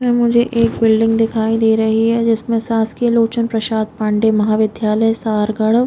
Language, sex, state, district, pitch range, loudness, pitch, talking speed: Hindi, female, Chhattisgarh, Raigarh, 220-230 Hz, -15 LUFS, 225 Hz, 155 wpm